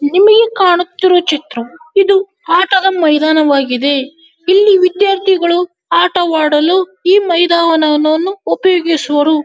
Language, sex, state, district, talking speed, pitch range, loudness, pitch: Kannada, male, Karnataka, Dharwad, 70 wpm, 310-380 Hz, -11 LUFS, 345 Hz